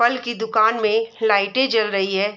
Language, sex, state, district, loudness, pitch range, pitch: Hindi, female, Bihar, Darbhanga, -19 LUFS, 205-230 Hz, 220 Hz